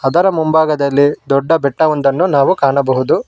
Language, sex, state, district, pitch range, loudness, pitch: Kannada, male, Karnataka, Bangalore, 140-160 Hz, -13 LUFS, 140 Hz